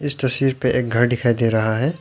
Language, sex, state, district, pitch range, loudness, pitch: Hindi, male, Arunachal Pradesh, Lower Dibang Valley, 120-135 Hz, -18 LUFS, 125 Hz